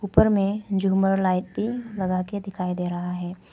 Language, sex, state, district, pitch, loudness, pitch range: Hindi, female, Arunachal Pradesh, Papum Pare, 195 Hz, -24 LUFS, 180-205 Hz